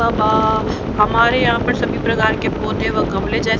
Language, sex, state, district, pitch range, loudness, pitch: Hindi, female, Haryana, Rohtak, 215-230 Hz, -17 LUFS, 220 Hz